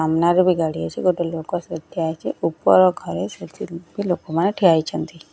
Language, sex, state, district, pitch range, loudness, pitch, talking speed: Odia, female, Odisha, Nuapada, 160-180 Hz, -20 LUFS, 170 Hz, 180 wpm